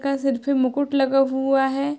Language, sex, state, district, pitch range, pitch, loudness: Hindi, female, Uttar Pradesh, Hamirpur, 270-275 Hz, 270 Hz, -21 LUFS